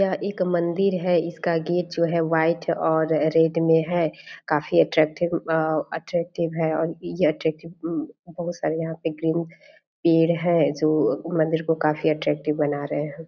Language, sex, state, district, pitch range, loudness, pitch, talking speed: Hindi, female, Bihar, Purnia, 160-170 Hz, -23 LUFS, 165 Hz, 165 wpm